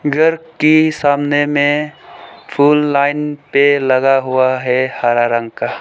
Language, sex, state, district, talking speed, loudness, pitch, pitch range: Hindi, male, Arunachal Pradesh, Lower Dibang Valley, 135 wpm, -14 LUFS, 145 Hz, 130-150 Hz